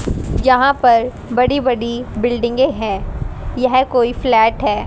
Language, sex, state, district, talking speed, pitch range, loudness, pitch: Hindi, female, Haryana, Rohtak, 125 wpm, 240-255 Hz, -16 LUFS, 250 Hz